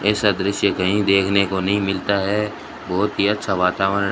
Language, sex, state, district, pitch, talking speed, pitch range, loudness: Hindi, male, Rajasthan, Bikaner, 100 Hz, 175 wpm, 95-100 Hz, -19 LUFS